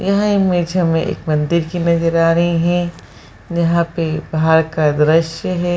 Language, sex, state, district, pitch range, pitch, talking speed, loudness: Hindi, female, Bihar, Jahanabad, 160-175 Hz, 170 Hz, 175 wpm, -16 LUFS